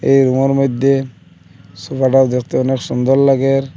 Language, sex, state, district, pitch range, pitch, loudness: Bengali, male, Assam, Hailakandi, 130-135 Hz, 135 Hz, -14 LUFS